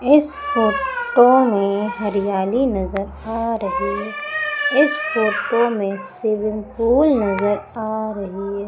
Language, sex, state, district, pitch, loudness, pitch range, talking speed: Hindi, female, Madhya Pradesh, Umaria, 220 Hz, -19 LUFS, 200-265 Hz, 115 wpm